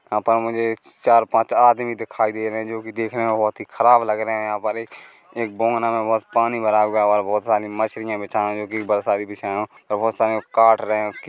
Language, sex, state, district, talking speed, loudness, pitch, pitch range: Hindi, male, Chhattisgarh, Korba, 255 wpm, -20 LUFS, 110 Hz, 105-115 Hz